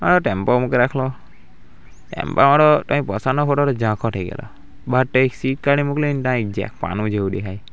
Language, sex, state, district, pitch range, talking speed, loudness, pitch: Gujarati, male, Gujarat, Valsad, 105-140 Hz, 180 wpm, -19 LUFS, 130 Hz